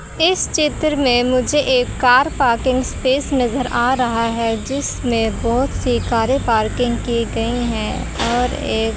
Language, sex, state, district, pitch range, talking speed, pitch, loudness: Hindi, female, Chandigarh, Chandigarh, 230-265 Hz, 145 wpm, 245 Hz, -17 LUFS